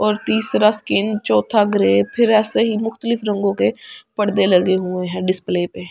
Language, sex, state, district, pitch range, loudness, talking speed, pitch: Hindi, female, Delhi, New Delhi, 185-220 Hz, -17 LUFS, 180 wpm, 210 Hz